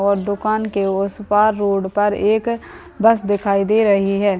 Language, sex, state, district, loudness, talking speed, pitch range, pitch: Hindi, female, West Bengal, Dakshin Dinajpur, -17 LUFS, 175 wpm, 200-215 Hz, 205 Hz